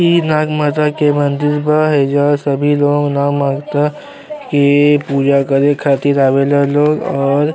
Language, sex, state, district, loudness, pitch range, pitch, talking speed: Bhojpuri, male, Uttar Pradesh, Deoria, -13 LUFS, 140-150 Hz, 145 Hz, 135 wpm